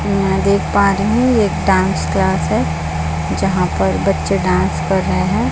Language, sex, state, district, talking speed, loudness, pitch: Hindi, female, Chhattisgarh, Raipur, 195 wpm, -16 LUFS, 195 Hz